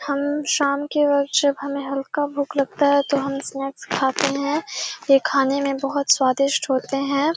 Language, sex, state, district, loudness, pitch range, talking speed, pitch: Hindi, female, Bihar, Kishanganj, -21 LUFS, 275-290 Hz, 180 wpm, 280 Hz